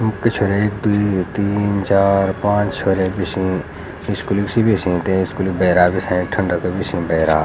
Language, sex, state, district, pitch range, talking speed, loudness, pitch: Garhwali, male, Uttarakhand, Uttarkashi, 90-105 Hz, 175 wpm, -18 LUFS, 95 Hz